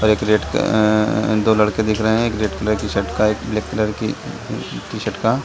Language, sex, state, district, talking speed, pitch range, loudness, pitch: Hindi, male, Bihar, Saran, 185 wpm, 105-110 Hz, -19 LUFS, 110 Hz